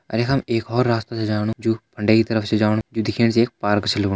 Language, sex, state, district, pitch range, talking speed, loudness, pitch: Hindi, male, Uttarakhand, Tehri Garhwal, 105-115 Hz, 290 wpm, -20 LUFS, 110 Hz